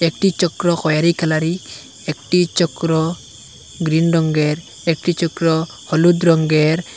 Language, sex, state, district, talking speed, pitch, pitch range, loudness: Bengali, male, Assam, Hailakandi, 110 wpm, 165 Hz, 160-175 Hz, -17 LUFS